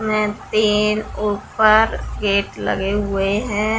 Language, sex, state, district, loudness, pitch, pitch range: Hindi, female, Bihar, Darbhanga, -18 LUFS, 210 Hz, 205-215 Hz